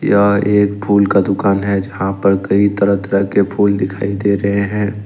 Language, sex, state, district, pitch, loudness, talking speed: Hindi, male, Jharkhand, Ranchi, 100 Hz, -15 LUFS, 200 wpm